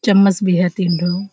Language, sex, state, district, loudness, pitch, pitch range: Hindi, female, Bihar, Kishanganj, -16 LUFS, 185 Hz, 180-195 Hz